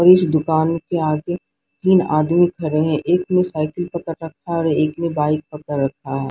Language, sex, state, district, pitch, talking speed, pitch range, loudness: Hindi, female, Odisha, Sambalpur, 160 Hz, 210 wpm, 155-175 Hz, -19 LUFS